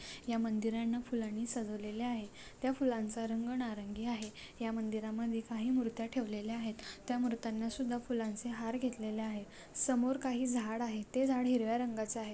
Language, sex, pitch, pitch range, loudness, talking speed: Marathi, female, 230 Hz, 220-245 Hz, -37 LUFS, 155 wpm